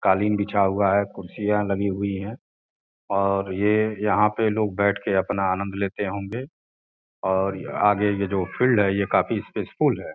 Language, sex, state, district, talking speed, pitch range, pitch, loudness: Hindi, male, Uttar Pradesh, Gorakhpur, 185 wpm, 100-105 Hz, 100 Hz, -23 LUFS